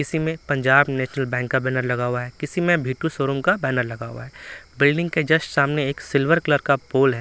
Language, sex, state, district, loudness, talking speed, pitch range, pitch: Hindi, male, Bihar, Patna, -21 LUFS, 240 wpm, 130-155 Hz, 140 Hz